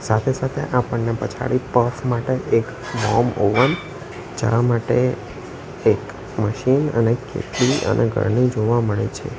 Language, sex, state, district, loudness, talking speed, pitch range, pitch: Gujarati, male, Gujarat, Valsad, -20 LUFS, 120 wpm, 115-130 Hz, 120 Hz